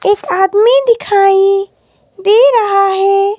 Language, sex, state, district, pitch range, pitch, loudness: Hindi, female, Himachal Pradesh, Shimla, 390-440 Hz, 395 Hz, -10 LUFS